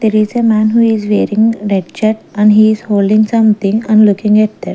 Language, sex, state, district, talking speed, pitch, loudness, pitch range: English, female, Maharashtra, Gondia, 240 wpm, 215 Hz, -11 LUFS, 210-220 Hz